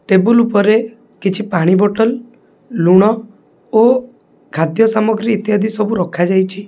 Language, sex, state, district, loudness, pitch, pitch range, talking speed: Odia, male, Odisha, Khordha, -14 LUFS, 215 Hz, 190-225 Hz, 110 wpm